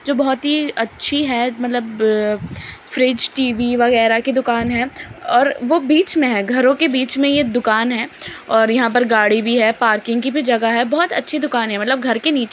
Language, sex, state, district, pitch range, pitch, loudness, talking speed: Hindi, female, Uttar Pradesh, Muzaffarnagar, 230-280 Hz, 245 Hz, -16 LUFS, 215 wpm